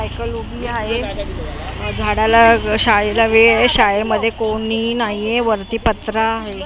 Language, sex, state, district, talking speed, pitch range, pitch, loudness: Marathi, female, Maharashtra, Mumbai Suburban, 135 wpm, 195-225 Hz, 220 Hz, -16 LUFS